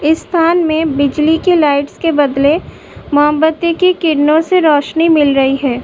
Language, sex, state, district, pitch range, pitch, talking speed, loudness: Hindi, female, Uttar Pradesh, Budaun, 285-330 Hz, 310 Hz, 165 wpm, -12 LUFS